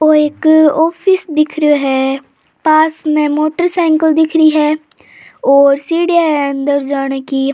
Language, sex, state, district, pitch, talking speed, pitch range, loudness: Rajasthani, female, Rajasthan, Churu, 305 Hz, 145 wpm, 280-320 Hz, -12 LUFS